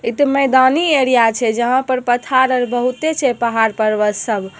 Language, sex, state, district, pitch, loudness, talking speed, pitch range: Hindi, female, Bihar, Begusarai, 250 Hz, -15 LUFS, 155 wpm, 230-260 Hz